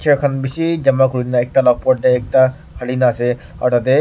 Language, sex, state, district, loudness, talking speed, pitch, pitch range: Nagamese, male, Nagaland, Kohima, -16 LUFS, 195 wpm, 130 Hz, 125-135 Hz